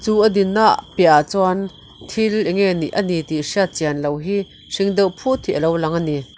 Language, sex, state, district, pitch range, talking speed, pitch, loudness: Mizo, female, Mizoram, Aizawl, 155-200 Hz, 235 wpm, 185 Hz, -18 LUFS